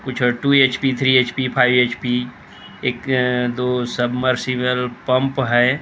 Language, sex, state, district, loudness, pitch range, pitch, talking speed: Hindi, male, Maharashtra, Gondia, -18 LUFS, 125-130 Hz, 125 Hz, 125 wpm